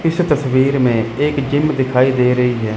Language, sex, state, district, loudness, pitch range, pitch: Hindi, male, Chandigarh, Chandigarh, -15 LUFS, 125-145 Hz, 130 Hz